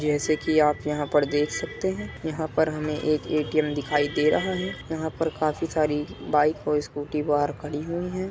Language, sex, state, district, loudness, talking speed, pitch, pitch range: Hindi, male, Uttar Pradesh, Muzaffarnagar, -25 LUFS, 195 wpm, 150 Hz, 150-160 Hz